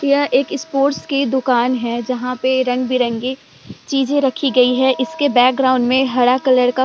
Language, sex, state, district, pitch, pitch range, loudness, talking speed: Hindi, female, Bihar, Vaishali, 260 Hz, 250-275 Hz, -16 LUFS, 185 wpm